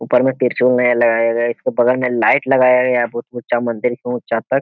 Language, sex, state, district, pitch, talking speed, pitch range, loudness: Hindi, male, Bihar, Jamui, 125 Hz, 260 wpm, 120-125 Hz, -16 LUFS